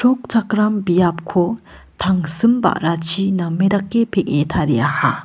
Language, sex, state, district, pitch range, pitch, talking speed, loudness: Garo, female, Meghalaya, West Garo Hills, 175-215 Hz, 190 Hz, 90 wpm, -17 LUFS